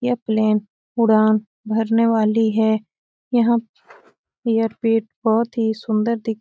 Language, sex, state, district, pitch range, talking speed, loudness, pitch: Hindi, female, Bihar, Lakhisarai, 215-230 Hz, 120 wpm, -19 LUFS, 225 Hz